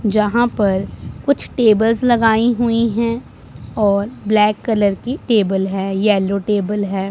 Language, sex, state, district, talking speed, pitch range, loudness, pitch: Hindi, male, Punjab, Pathankot, 135 wpm, 200-230 Hz, -17 LUFS, 215 Hz